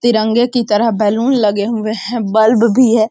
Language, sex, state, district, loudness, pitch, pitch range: Hindi, female, Bihar, Sitamarhi, -13 LUFS, 225 Hz, 215-235 Hz